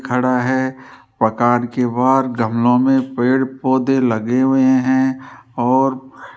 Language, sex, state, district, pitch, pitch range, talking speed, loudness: Hindi, male, Rajasthan, Jaipur, 130 Hz, 125-130 Hz, 130 wpm, -16 LUFS